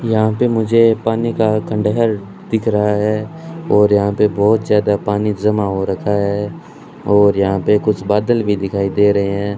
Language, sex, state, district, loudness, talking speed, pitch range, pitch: Hindi, male, Rajasthan, Bikaner, -15 LUFS, 180 wpm, 100-110 Hz, 105 Hz